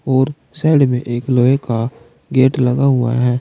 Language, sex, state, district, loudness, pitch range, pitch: Hindi, male, Uttar Pradesh, Saharanpur, -16 LUFS, 125-135 Hz, 130 Hz